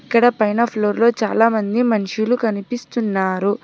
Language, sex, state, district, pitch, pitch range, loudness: Telugu, female, Telangana, Hyderabad, 220 Hz, 205-235 Hz, -18 LUFS